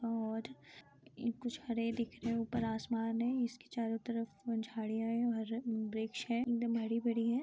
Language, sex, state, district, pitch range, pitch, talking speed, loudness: Hindi, female, Chhattisgarh, Sarguja, 225-235 Hz, 230 Hz, 175 wpm, -38 LUFS